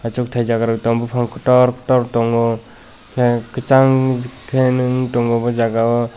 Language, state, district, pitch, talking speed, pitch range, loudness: Kokborok, Tripura, West Tripura, 120 Hz, 125 wpm, 115-125 Hz, -17 LUFS